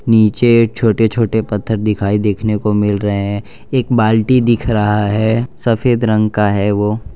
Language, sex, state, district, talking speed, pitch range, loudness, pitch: Hindi, male, Gujarat, Valsad, 175 wpm, 105-115 Hz, -14 LUFS, 110 Hz